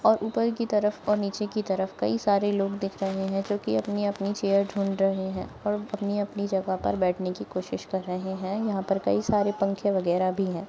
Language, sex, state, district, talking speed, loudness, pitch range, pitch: Hindi, female, Maharashtra, Nagpur, 220 wpm, -27 LUFS, 190-205 Hz, 195 Hz